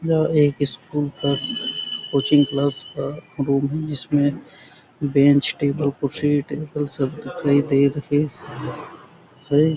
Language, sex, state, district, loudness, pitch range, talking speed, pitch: Hindi, male, Chhattisgarh, Sarguja, -21 LUFS, 140-150 Hz, 90 wpm, 145 Hz